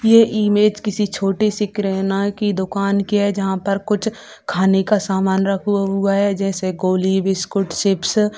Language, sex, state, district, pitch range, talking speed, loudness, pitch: Hindi, female, Bihar, Sitamarhi, 190-210 Hz, 165 wpm, -18 LUFS, 200 Hz